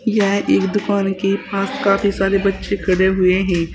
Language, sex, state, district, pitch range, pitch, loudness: Hindi, female, Uttar Pradesh, Saharanpur, 190-200 Hz, 195 Hz, -17 LUFS